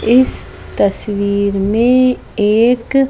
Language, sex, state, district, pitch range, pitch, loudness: Hindi, female, Madhya Pradesh, Bhopal, 200-250 Hz, 225 Hz, -14 LUFS